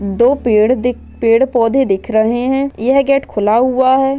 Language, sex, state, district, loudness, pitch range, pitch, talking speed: Hindi, female, Maharashtra, Aurangabad, -13 LUFS, 225-265 Hz, 245 Hz, 160 wpm